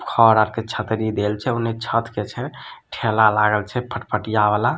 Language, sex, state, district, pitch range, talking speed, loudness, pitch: Maithili, male, Bihar, Samastipur, 105-115 Hz, 175 wpm, -20 LUFS, 110 Hz